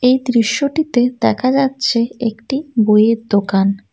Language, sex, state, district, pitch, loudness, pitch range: Bengali, female, West Bengal, Alipurduar, 235 Hz, -15 LUFS, 220-260 Hz